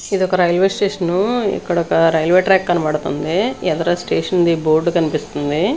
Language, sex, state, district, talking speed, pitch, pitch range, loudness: Telugu, female, Andhra Pradesh, Sri Satya Sai, 145 wpm, 175 Hz, 160-190 Hz, -17 LUFS